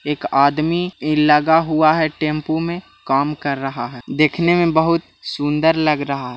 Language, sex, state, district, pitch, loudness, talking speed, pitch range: Hindi, male, Bihar, Jahanabad, 155 Hz, -17 LUFS, 170 wpm, 145-160 Hz